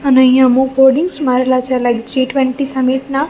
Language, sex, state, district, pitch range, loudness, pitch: Gujarati, female, Gujarat, Gandhinagar, 255-270 Hz, -13 LUFS, 260 Hz